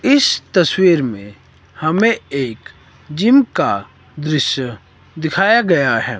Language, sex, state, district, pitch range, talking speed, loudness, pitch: Hindi, male, Himachal Pradesh, Shimla, 120-190 Hz, 105 wpm, -15 LUFS, 150 Hz